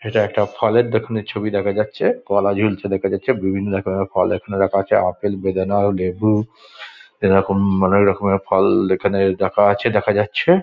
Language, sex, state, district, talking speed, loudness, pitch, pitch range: Bengali, male, West Bengal, Dakshin Dinajpur, 170 wpm, -18 LUFS, 100 Hz, 95-105 Hz